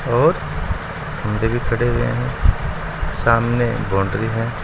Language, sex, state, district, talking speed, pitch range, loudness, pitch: Hindi, male, Uttar Pradesh, Saharanpur, 90 wpm, 105-120 Hz, -20 LUFS, 115 Hz